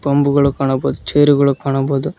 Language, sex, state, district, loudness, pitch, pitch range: Kannada, male, Karnataka, Koppal, -15 LUFS, 140 Hz, 135-145 Hz